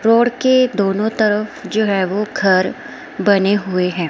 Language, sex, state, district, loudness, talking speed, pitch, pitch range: Hindi, female, Himachal Pradesh, Shimla, -16 LUFS, 160 wpm, 205 Hz, 190-220 Hz